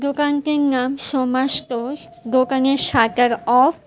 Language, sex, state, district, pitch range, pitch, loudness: Bengali, female, Tripura, West Tripura, 250-285 Hz, 265 Hz, -18 LUFS